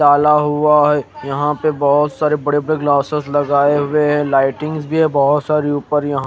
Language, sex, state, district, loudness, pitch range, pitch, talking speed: Hindi, male, Odisha, Khordha, -15 LUFS, 145-150 Hz, 150 Hz, 180 wpm